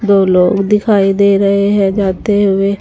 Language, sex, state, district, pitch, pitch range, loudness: Hindi, female, Haryana, Charkhi Dadri, 200 Hz, 195-205 Hz, -11 LUFS